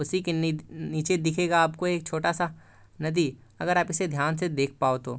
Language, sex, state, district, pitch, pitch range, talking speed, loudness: Hindi, male, Bihar, East Champaran, 160 Hz, 150-175 Hz, 195 wpm, -27 LUFS